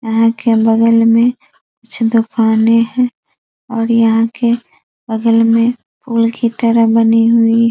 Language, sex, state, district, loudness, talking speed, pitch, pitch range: Hindi, female, Bihar, East Champaran, -13 LUFS, 140 wpm, 230 Hz, 225-230 Hz